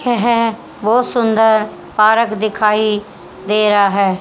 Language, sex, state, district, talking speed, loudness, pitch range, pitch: Hindi, female, Haryana, Charkhi Dadri, 130 wpm, -14 LUFS, 210-230 Hz, 215 Hz